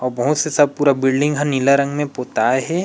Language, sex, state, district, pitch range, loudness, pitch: Chhattisgarhi, male, Chhattisgarh, Rajnandgaon, 130-145 Hz, -17 LUFS, 140 Hz